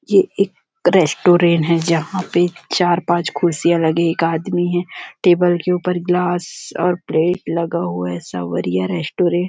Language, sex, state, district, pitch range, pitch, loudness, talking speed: Hindi, female, Chhattisgarh, Rajnandgaon, 165-180 Hz, 175 Hz, -17 LUFS, 150 wpm